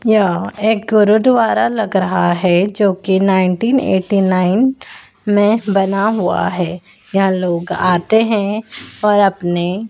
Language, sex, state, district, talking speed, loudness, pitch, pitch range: Hindi, female, Madhya Pradesh, Dhar, 125 wpm, -15 LUFS, 200 Hz, 185-220 Hz